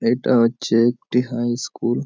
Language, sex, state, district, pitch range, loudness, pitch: Bengali, male, West Bengal, Jhargram, 115-125 Hz, -20 LUFS, 120 Hz